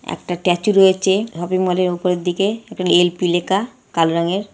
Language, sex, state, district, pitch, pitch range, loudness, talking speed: Bengali, female, West Bengal, North 24 Parganas, 180 Hz, 175-195 Hz, -18 LUFS, 160 wpm